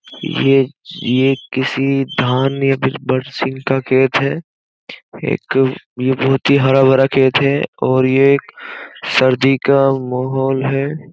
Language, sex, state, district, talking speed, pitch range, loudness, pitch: Hindi, male, Uttar Pradesh, Jyotiba Phule Nagar, 130 wpm, 130-135 Hz, -15 LUFS, 135 Hz